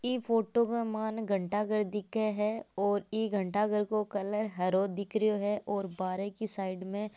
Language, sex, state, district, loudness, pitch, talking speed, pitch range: Marwari, female, Rajasthan, Nagaur, -32 LUFS, 210 Hz, 185 wpm, 200-220 Hz